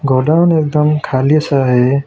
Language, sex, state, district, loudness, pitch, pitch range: Hindi, male, West Bengal, Alipurduar, -13 LUFS, 145 Hz, 130-150 Hz